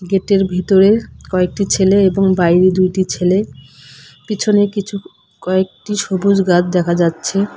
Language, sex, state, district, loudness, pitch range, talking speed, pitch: Bengali, female, West Bengal, Cooch Behar, -15 LUFS, 180-200 Hz, 120 wpm, 190 Hz